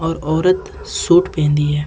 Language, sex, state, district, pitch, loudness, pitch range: Hindi, male, Jharkhand, Ranchi, 160 Hz, -16 LUFS, 150-175 Hz